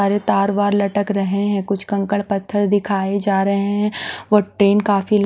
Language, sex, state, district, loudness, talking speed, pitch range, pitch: Hindi, female, Bihar, West Champaran, -18 LUFS, 180 wpm, 200-205 Hz, 200 Hz